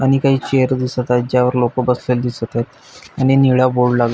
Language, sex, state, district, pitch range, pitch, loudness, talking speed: Marathi, male, Maharashtra, Pune, 125-130 Hz, 125 Hz, -16 LUFS, 190 wpm